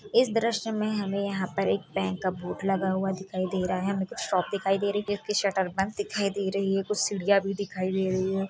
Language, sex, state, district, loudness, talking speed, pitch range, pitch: Hindi, female, Bihar, Purnia, -28 LUFS, 255 wpm, 190-205 Hz, 195 Hz